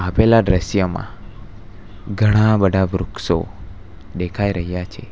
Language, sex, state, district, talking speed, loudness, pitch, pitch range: Gujarati, male, Gujarat, Valsad, 95 wpm, -18 LUFS, 100 Hz, 90-105 Hz